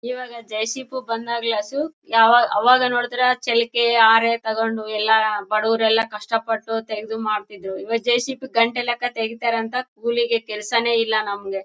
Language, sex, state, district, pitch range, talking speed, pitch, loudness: Kannada, female, Karnataka, Bellary, 220-240 Hz, 145 wpm, 230 Hz, -20 LUFS